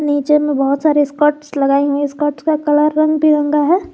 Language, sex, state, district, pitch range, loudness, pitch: Hindi, female, Jharkhand, Garhwa, 290-305 Hz, -14 LUFS, 295 Hz